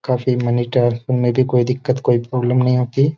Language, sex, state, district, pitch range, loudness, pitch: Hindi, male, Uttar Pradesh, Jyotiba Phule Nagar, 120-125 Hz, -17 LUFS, 125 Hz